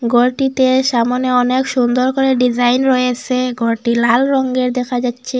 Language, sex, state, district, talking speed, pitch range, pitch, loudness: Bengali, female, Assam, Hailakandi, 135 wpm, 245-260 Hz, 250 Hz, -15 LUFS